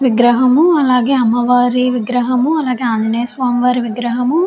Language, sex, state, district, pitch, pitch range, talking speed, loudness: Telugu, female, Andhra Pradesh, Chittoor, 250 Hz, 240-255 Hz, 120 wpm, -14 LUFS